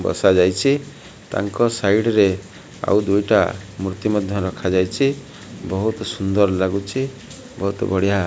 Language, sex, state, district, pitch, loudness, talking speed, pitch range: Odia, male, Odisha, Malkangiri, 100 Hz, -20 LUFS, 110 wpm, 95-115 Hz